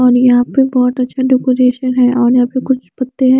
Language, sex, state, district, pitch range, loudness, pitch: Hindi, female, Chandigarh, Chandigarh, 250-260 Hz, -12 LUFS, 255 Hz